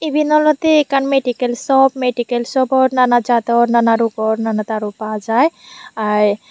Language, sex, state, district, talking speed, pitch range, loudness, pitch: Chakma, female, Tripura, Unakoti, 150 wpm, 225-275 Hz, -15 LUFS, 245 Hz